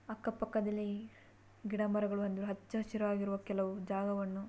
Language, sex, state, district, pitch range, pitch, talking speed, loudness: Kannada, female, Karnataka, Bijapur, 200-215 Hz, 205 Hz, 120 wpm, -38 LUFS